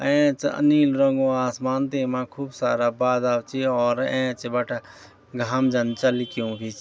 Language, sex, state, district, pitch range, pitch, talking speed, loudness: Garhwali, male, Uttarakhand, Tehri Garhwal, 120-135 Hz, 125 Hz, 160 wpm, -23 LUFS